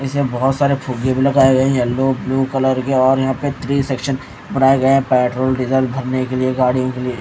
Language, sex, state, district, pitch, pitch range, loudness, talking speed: Hindi, male, Odisha, Khordha, 130 Hz, 130-135 Hz, -16 LUFS, 225 wpm